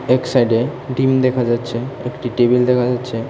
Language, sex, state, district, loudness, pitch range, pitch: Bengali, male, Tripura, West Tripura, -17 LUFS, 120-130 Hz, 125 Hz